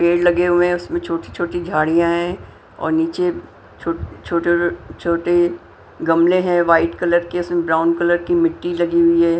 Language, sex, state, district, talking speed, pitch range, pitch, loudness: Hindi, female, Punjab, Pathankot, 165 wpm, 170-175 Hz, 175 Hz, -18 LUFS